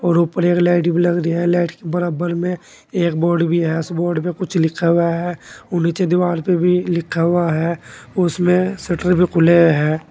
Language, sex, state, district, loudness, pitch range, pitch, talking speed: Hindi, male, Uttar Pradesh, Saharanpur, -17 LUFS, 170-175 Hz, 175 Hz, 215 wpm